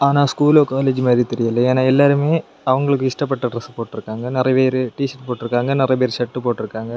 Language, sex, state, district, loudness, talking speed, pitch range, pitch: Tamil, male, Tamil Nadu, Kanyakumari, -18 LUFS, 165 wpm, 120-135 Hz, 130 Hz